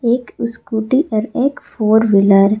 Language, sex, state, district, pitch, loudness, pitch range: Hindi, female, Jharkhand, Garhwa, 220 Hz, -15 LUFS, 210-240 Hz